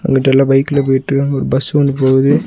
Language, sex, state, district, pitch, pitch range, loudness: Tamil, male, Tamil Nadu, Nilgiris, 135 Hz, 135-140 Hz, -13 LUFS